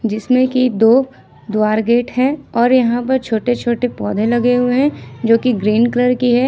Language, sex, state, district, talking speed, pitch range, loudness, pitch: Hindi, female, Jharkhand, Ranchi, 195 wpm, 230-255 Hz, -15 LUFS, 245 Hz